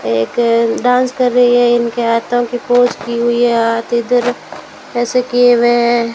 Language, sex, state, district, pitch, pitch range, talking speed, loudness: Hindi, female, Rajasthan, Bikaner, 240 Hz, 235-245 Hz, 165 wpm, -13 LUFS